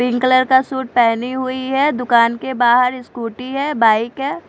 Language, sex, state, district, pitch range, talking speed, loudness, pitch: Hindi, female, Chandigarh, Chandigarh, 240-265 Hz, 185 wpm, -16 LUFS, 255 Hz